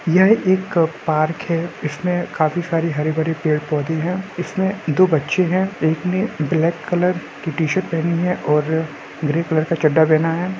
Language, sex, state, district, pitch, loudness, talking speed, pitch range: Hindi, male, Jharkhand, Jamtara, 165 Hz, -19 LUFS, 175 wpm, 155-180 Hz